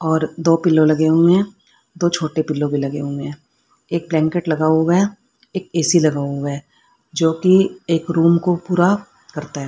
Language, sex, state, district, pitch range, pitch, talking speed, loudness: Hindi, female, Haryana, Rohtak, 155-180 Hz, 165 Hz, 185 wpm, -17 LUFS